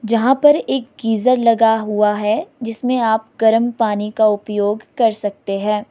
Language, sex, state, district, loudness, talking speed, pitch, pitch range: Hindi, female, Himachal Pradesh, Shimla, -17 LUFS, 150 wpm, 225 Hz, 210-240 Hz